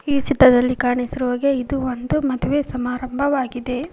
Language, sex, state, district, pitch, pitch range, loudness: Kannada, female, Karnataka, Koppal, 255 Hz, 250-280 Hz, -19 LUFS